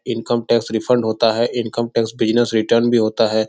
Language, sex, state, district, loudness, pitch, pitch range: Hindi, male, Bihar, Jahanabad, -18 LUFS, 115 Hz, 110-120 Hz